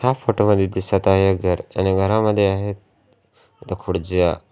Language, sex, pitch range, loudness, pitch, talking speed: Marathi, male, 95-105 Hz, -19 LUFS, 95 Hz, 145 wpm